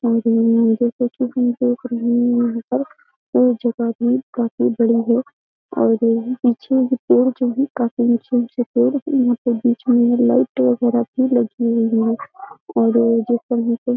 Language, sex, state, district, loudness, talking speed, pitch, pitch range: Hindi, female, Uttar Pradesh, Jyotiba Phule Nagar, -18 LUFS, 165 wpm, 240 Hz, 230-250 Hz